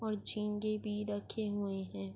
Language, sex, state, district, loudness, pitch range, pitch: Urdu, female, Andhra Pradesh, Anantapur, -38 LUFS, 200-215 Hz, 210 Hz